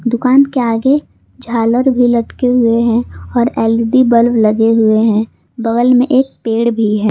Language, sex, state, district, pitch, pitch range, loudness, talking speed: Hindi, female, Jharkhand, Palamu, 235 Hz, 225-250 Hz, -12 LUFS, 170 wpm